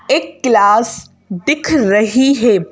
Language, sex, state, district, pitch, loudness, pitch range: Hindi, female, Madhya Pradesh, Bhopal, 230 Hz, -13 LUFS, 205-275 Hz